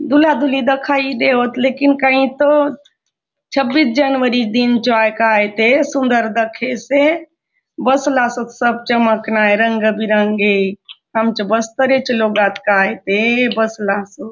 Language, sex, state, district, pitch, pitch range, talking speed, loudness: Halbi, female, Chhattisgarh, Bastar, 240 Hz, 220-270 Hz, 145 wpm, -15 LUFS